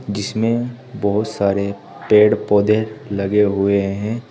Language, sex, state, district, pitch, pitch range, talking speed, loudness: Hindi, male, Uttar Pradesh, Saharanpur, 105 Hz, 100-110 Hz, 110 wpm, -18 LUFS